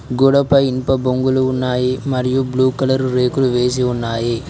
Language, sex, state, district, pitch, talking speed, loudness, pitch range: Telugu, male, Telangana, Mahabubabad, 130 Hz, 135 wpm, -16 LUFS, 125-130 Hz